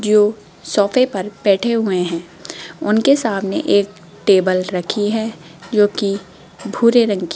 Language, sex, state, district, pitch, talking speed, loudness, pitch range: Hindi, female, Rajasthan, Jaipur, 205 Hz, 140 wpm, -17 LUFS, 185-220 Hz